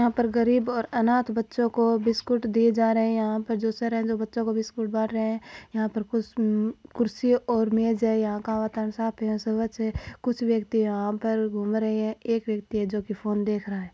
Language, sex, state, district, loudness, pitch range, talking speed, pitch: Marwari, female, Rajasthan, Churu, -26 LUFS, 220-230 Hz, 230 wpm, 225 Hz